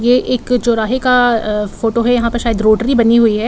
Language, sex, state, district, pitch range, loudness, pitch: Hindi, female, Bihar, Saran, 225-245 Hz, -14 LUFS, 235 Hz